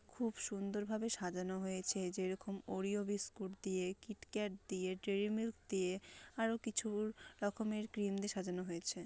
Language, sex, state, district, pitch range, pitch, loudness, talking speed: Bengali, female, West Bengal, Malda, 185-215 Hz, 200 Hz, -41 LUFS, 145 wpm